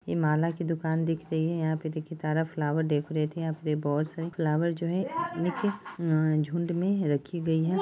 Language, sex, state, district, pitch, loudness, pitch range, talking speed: Hindi, female, Bihar, Purnia, 160 Hz, -29 LUFS, 155-170 Hz, 205 wpm